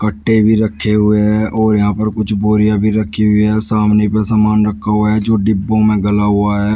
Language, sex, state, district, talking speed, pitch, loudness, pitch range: Hindi, male, Uttar Pradesh, Shamli, 230 wpm, 105 Hz, -13 LUFS, 105-110 Hz